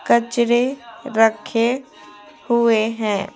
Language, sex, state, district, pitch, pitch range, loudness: Hindi, female, Bihar, Patna, 230 Hz, 220-235 Hz, -19 LUFS